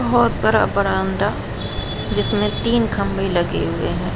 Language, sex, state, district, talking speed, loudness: Hindi, female, Uttar Pradesh, Jalaun, 145 wpm, -19 LUFS